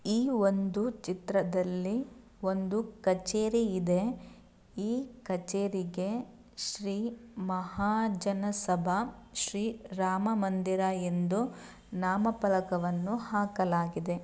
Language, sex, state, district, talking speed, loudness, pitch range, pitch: Kannada, female, Karnataka, Mysore, 65 wpm, -32 LUFS, 185-225 Hz, 200 Hz